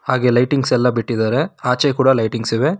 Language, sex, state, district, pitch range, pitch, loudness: Kannada, male, Karnataka, Bangalore, 115-135 Hz, 125 Hz, -17 LUFS